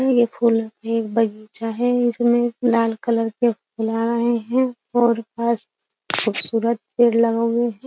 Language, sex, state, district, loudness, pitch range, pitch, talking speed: Hindi, female, Uttar Pradesh, Jyotiba Phule Nagar, -19 LUFS, 225-240 Hz, 235 Hz, 150 wpm